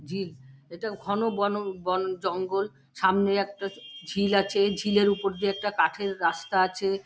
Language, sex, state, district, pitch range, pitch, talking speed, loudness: Bengali, female, West Bengal, Dakshin Dinajpur, 185-200 Hz, 195 Hz, 145 wpm, -27 LUFS